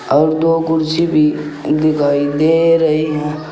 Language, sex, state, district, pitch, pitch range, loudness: Hindi, male, Uttar Pradesh, Saharanpur, 155 Hz, 150-160 Hz, -14 LUFS